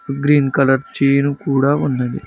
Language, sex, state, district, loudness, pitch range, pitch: Telugu, male, Telangana, Mahabubabad, -16 LUFS, 135-145 Hz, 140 Hz